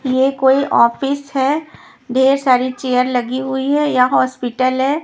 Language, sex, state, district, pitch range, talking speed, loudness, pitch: Hindi, female, Punjab, Kapurthala, 255-275 Hz, 155 wpm, -16 LUFS, 260 Hz